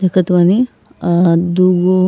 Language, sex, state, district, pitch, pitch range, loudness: Bhojpuri, female, Uttar Pradesh, Ghazipur, 185 Hz, 175-185 Hz, -13 LUFS